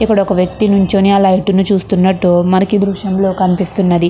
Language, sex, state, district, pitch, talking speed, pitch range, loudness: Telugu, female, Andhra Pradesh, Chittoor, 190 Hz, 175 wpm, 185-200 Hz, -12 LUFS